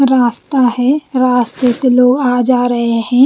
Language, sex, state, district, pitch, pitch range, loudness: Hindi, female, Chandigarh, Chandigarh, 250 Hz, 245-260 Hz, -12 LUFS